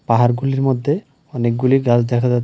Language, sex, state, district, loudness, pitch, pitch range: Bengali, male, Tripura, West Tripura, -17 LUFS, 125 Hz, 120-135 Hz